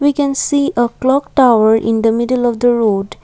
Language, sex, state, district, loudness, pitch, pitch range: English, female, Assam, Kamrup Metropolitan, -14 LUFS, 240 Hz, 225-275 Hz